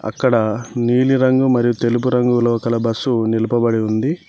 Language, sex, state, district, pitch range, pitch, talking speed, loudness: Telugu, male, Telangana, Mahabubabad, 115-125 Hz, 120 Hz, 125 wpm, -17 LUFS